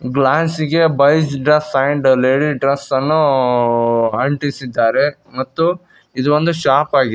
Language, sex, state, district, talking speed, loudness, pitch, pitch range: Kannada, male, Karnataka, Koppal, 110 wpm, -15 LUFS, 140 Hz, 130-150 Hz